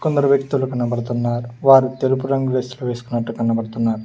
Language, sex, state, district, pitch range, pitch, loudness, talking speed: Telugu, male, Telangana, Mahabubabad, 120-135 Hz, 125 Hz, -19 LUFS, 135 wpm